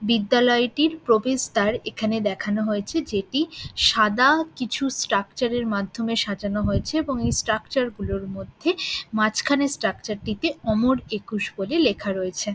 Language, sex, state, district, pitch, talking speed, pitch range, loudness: Bengali, female, West Bengal, Dakshin Dinajpur, 225 Hz, 130 wpm, 210-265 Hz, -23 LUFS